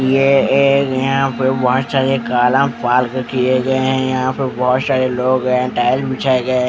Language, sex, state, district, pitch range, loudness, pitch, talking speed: Hindi, male, Odisha, Khordha, 125-135 Hz, -15 LUFS, 130 Hz, 195 wpm